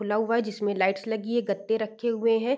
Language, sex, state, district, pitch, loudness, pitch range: Hindi, female, Bihar, Gopalganj, 220 Hz, -27 LUFS, 210-230 Hz